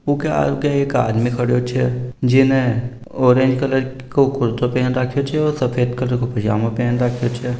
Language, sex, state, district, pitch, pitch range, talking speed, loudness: Marwari, male, Rajasthan, Nagaur, 125 Hz, 120-135 Hz, 175 wpm, -18 LUFS